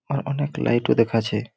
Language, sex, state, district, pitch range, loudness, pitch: Bengali, male, West Bengal, Malda, 115-140 Hz, -22 LUFS, 120 Hz